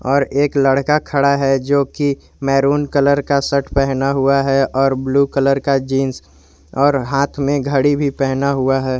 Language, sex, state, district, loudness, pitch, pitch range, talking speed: Hindi, male, Jharkhand, Garhwa, -16 LUFS, 140 Hz, 135-140 Hz, 180 wpm